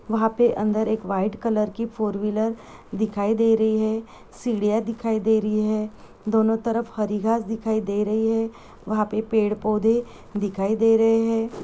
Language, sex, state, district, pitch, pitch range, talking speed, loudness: Hindi, female, Chhattisgarh, Rajnandgaon, 220 Hz, 215-225 Hz, 175 wpm, -23 LUFS